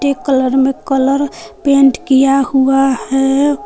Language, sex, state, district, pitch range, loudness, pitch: Hindi, female, Jharkhand, Palamu, 265-275 Hz, -13 LUFS, 270 Hz